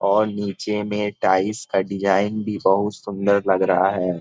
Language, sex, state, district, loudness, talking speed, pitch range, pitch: Hindi, male, Jharkhand, Sahebganj, -21 LUFS, 170 wpm, 95-105 Hz, 100 Hz